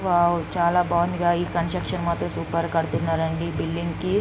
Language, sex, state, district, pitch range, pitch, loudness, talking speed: Telugu, female, Andhra Pradesh, Guntur, 165-175 Hz, 170 Hz, -24 LUFS, 200 wpm